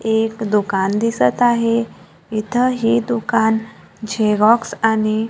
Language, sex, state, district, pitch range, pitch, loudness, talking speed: Marathi, female, Maharashtra, Gondia, 210-230 Hz, 220 Hz, -17 LUFS, 100 wpm